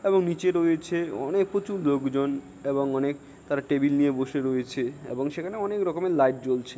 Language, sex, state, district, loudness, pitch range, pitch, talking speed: Bengali, male, West Bengal, Jalpaiguri, -26 LUFS, 135-175 Hz, 140 Hz, 170 wpm